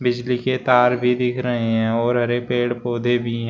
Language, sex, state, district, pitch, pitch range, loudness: Hindi, male, Uttar Pradesh, Shamli, 120 Hz, 120-125 Hz, -20 LUFS